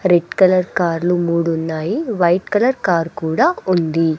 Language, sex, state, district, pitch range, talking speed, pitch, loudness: Telugu, female, Andhra Pradesh, Sri Satya Sai, 165-185 Hz, 130 wpm, 175 Hz, -17 LUFS